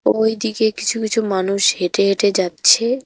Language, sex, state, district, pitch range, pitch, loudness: Bengali, female, West Bengal, Cooch Behar, 195-225 Hz, 215 Hz, -17 LUFS